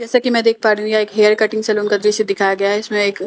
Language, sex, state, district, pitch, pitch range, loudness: Hindi, female, Bihar, Katihar, 210 Hz, 205-220 Hz, -15 LUFS